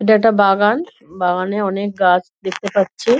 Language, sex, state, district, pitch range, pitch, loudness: Bengali, female, West Bengal, Dakshin Dinajpur, 185-210 Hz, 200 Hz, -17 LUFS